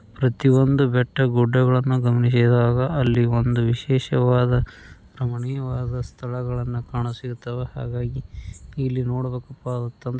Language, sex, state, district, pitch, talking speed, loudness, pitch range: Kannada, male, Karnataka, Bijapur, 125 Hz, 100 wpm, -22 LUFS, 120-130 Hz